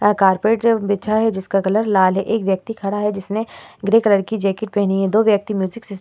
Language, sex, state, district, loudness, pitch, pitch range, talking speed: Hindi, female, Uttar Pradesh, Hamirpur, -18 LUFS, 205 Hz, 195-220 Hz, 250 wpm